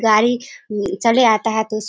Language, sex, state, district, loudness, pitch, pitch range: Hindi, female, Bihar, Kishanganj, -17 LUFS, 220 Hz, 215-235 Hz